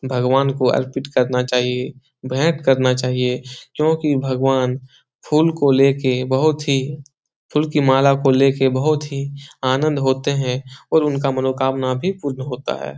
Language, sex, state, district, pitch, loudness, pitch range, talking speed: Hindi, male, Bihar, Jahanabad, 135 Hz, -18 LUFS, 130-145 Hz, 155 wpm